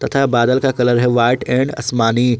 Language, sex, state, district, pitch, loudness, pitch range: Hindi, male, Jharkhand, Ranchi, 125 Hz, -15 LUFS, 120-130 Hz